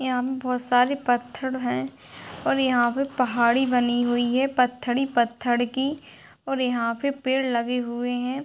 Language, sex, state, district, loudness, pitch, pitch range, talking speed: Hindi, female, Bihar, Sitamarhi, -24 LUFS, 250 Hz, 240-260 Hz, 180 wpm